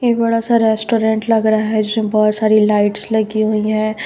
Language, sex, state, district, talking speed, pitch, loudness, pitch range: Hindi, female, Haryana, Rohtak, 205 wpm, 220 Hz, -15 LUFS, 215-225 Hz